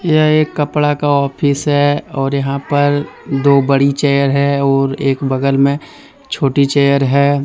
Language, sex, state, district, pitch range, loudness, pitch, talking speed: Hindi, male, Jharkhand, Deoghar, 140-145 Hz, -14 LUFS, 140 Hz, 160 wpm